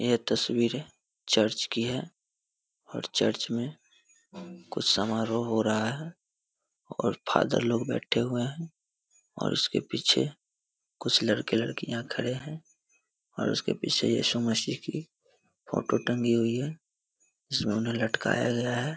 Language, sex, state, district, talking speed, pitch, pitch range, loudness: Hindi, male, Bihar, Muzaffarpur, 130 wpm, 120 Hz, 115-140 Hz, -28 LUFS